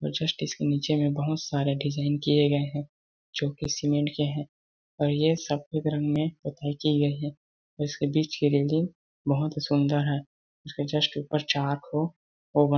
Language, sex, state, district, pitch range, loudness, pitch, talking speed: Hindi, male, Chhattisgarh, Balrampur, 145-150 Hz, -27 LUFS, 145 Hz, 190 wpm